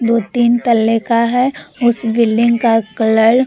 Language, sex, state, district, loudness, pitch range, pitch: Hindi, female, Bihar, Vaishali, -14 LUFS, 225-240 Hz, 235 Hz